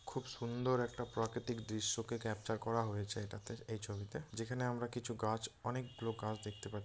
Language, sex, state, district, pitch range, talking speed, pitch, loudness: Bengali, male, West Bengal, Dakshin Dinajpur, 110-120 Hz, 175 wpm, 115 Hz, -41 LUFS